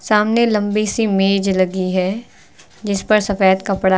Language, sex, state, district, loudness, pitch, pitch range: Hindi, female, Uttar Pradesh, Lucknow, -17 LUFS, 200 Hz, 190-215 Hz